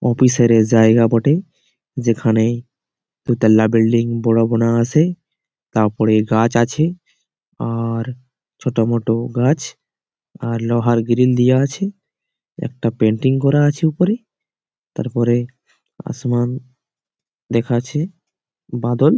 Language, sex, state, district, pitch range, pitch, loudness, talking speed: Bengali, male, West Bengal, Malda, 115-140 Hz, 120 Hz, -17 LUFS, 90 wpm